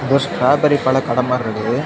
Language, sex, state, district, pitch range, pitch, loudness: Tamil, male, Tamil Nadu, Kanyakumari, 125-140 Hz, 130 Hz, -16 LUFS